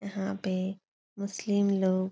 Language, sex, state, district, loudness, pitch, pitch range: Hindi, female, Bihar, Supaul, -30 LUFS, 195 Hz, 190-200 Hz